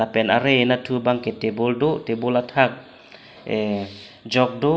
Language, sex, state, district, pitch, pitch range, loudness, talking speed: Karbi, male, Assam, Karbi Anglong, 125 Hz, 110-125 Hz, -21 LUFS, 125 wpm